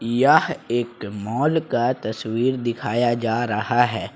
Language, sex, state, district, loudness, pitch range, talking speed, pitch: Hindi, male, Jharkhand, Ranchi, -21 LUFS, 110-120 Hz, 130 wpm, 120 Hz